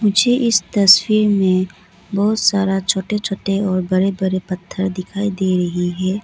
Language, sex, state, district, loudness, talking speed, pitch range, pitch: Hindi, female, Arunachal Pradesh, Lower Dibang Valley, -17 LUFS, 155 wpm, 185-205 Hz, 195 Hz